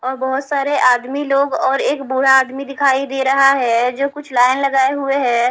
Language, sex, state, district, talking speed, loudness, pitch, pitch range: Hindi, female, Haryana, Charkhi Dadri, 205 wpm, -16 LUFS, 270 Hz, 260-275 Hz